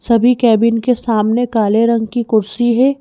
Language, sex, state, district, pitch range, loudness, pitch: Hindi, female, Madhya Pradesh, Bhopal, 220-245 Hz, -14 LUFS, 235 Hz